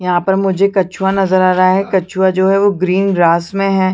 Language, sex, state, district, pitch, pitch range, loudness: Hindi, female, Chhattisgarh, Rajnandgaon, 190 Hz, 185-195 Hz, -13 LUFS